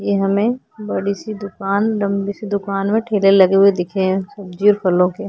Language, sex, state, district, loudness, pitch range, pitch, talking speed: Hindi, female, Uttar Pradesh, Jyotiba Phule Nagar, -17 LUFS, 195-210 Hz, 200 Hz, 205 wpm